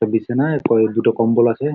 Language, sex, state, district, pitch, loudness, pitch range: Bengali, male, West Bengal, Jalpaiguri, 115 Hz, -17 LUFS, 115-130 Hz